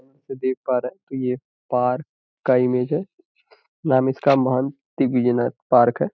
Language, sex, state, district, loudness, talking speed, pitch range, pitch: Hindi, male, Uttar Pradesh, Gorakhpur, -21 LUFS, 145 wpm, 125-140 Hz, 130 Hz